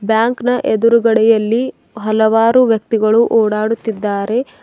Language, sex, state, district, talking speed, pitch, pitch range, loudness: Kannada, female, Karnataka, Bidar, 80 wpm, 225 Hz, 220-230 Hz, -14 LUFS